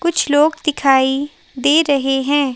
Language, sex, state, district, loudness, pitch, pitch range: Hindi, female, Himachal Pradesh, Shimla, -15 LUFS, 285 Hz, 270-300 Hz